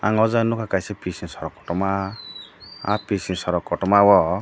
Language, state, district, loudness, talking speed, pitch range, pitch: Kokborok, Tripura, Dhalai, -21 LUFS, 165 wpm, 90-105 Hz, 95 Hz